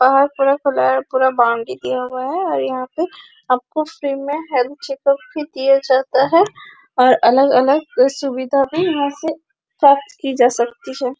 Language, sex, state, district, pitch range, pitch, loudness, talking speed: Hindi, female, Chhattisgarh, Bastar, 255-300 Hz, 275 Hz, -17 LUFS, 180 wpm